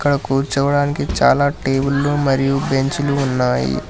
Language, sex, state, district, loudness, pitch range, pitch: Telugu, male, Telangana, Hyderabad, -17 LUFS, 135-145 Hz, 135 Hz